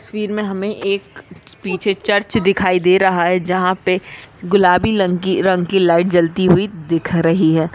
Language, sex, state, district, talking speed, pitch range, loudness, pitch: Hindi, female, Maharashtra, Aurangabad, 170 wpm, 175-195 Hz, -16 LUFS, 185 Hz